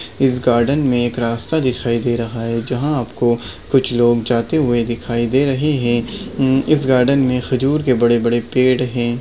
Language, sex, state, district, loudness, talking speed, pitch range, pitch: Hindi, male, Maharashtra, Nagpur, -17 LUFS, 185 wpm, 120-135 Hz, 125 Hz